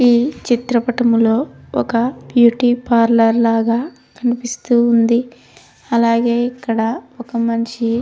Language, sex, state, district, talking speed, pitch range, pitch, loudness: Telugu, female, Andhra Pradesh, Krishna, 80 wpm, 230-245 Hz, 235 Hz, -16 LUFS